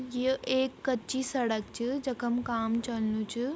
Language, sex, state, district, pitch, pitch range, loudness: Garhwali, female, Uttarakhand, Tehri Garhwal, 245 Hz, 230-260 Hz, -31 LUFS